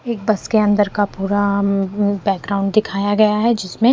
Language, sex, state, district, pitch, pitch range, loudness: Hindi, female, Haryana, Rohtak, 205 Hz, 200-215 Hz, -17 LUFS